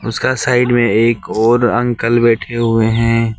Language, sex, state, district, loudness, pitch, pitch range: Hindi, male, Jharkhand, Ranchi, -14 LUFS, 115 Hz, 115-120 Hz